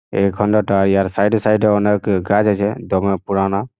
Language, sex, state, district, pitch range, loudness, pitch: Bengali, male, West Bengal, Jhargram, 100-105 Hz, -16 LUFS, 100 Hz